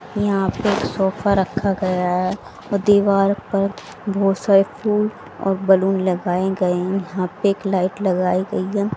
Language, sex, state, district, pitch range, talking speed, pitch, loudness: Hindi, female, Haryana, Rohtak, 185-200 Hz, 160 wpm, 195 Hz, -19 LUFS